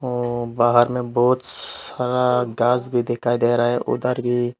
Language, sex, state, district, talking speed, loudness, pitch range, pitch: Hindi, male, Tripura, Unakoti, 170 wpm, -20 LUFS, 120-125 Hz, 120 Hz